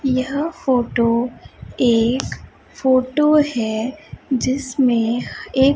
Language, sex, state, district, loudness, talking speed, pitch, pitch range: Hindi, female, Chhattisgarh, Raipur, -19 LUFS, 75 wpm, 255 Hz, 235-270 Hz